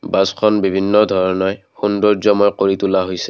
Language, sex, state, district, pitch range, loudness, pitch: Assamese, male, Assam, Kamrup Metropolitan, 95-105 Hz, -16 LUFS, 100 Hz